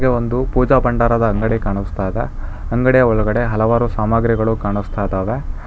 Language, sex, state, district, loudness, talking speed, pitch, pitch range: Kannada, male, Karnataka, Bangalore, -17 LUFS, 125 wpm, 115 Hz, 105-120 Hz